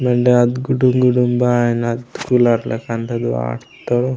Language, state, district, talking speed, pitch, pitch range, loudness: Gondi, Chhattisgarh, Sukma, 145 wpm, 120 Hz, 115-125 Hz, -17 LUFS